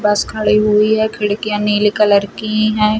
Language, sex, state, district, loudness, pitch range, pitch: Hindi, female, Chhattisgarh, Rajnandgaon, -14 LUFS, 210-215 Hz, 210 Hz